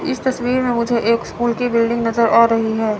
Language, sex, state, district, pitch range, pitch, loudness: Hindi, female, Chandigarh, Chandigarh, 230-245 Hz, 235 Hz, -17 LUFS